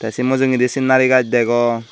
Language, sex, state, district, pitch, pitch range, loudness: Chakma, male, Tripura, Dhalai, 125 Hz, 120-130 Hz, -15 LUFS